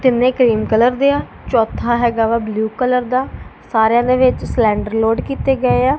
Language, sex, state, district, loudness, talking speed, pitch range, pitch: Punjabi, female, Punjab, Kapurthala, -16 LUFS, 190 wpm, 225-255 Hz, 240 Hz